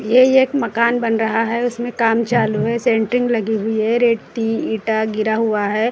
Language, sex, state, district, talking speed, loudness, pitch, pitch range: Hindi, female, Maharashtra, Gondia, 190 wpm, -17 LUFS, 230 Hz, 220-240 Hz